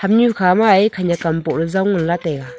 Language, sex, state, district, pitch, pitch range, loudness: Wancho, female, Arunachal Pradesh, Longding, 180 Hz, 165-195 Hz, -16 LUFS